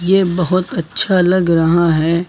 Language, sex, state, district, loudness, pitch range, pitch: Hindi, male, Uttar Pradesh, Lucknow, -14 LUFS, 165-185 Hz, 175 Hz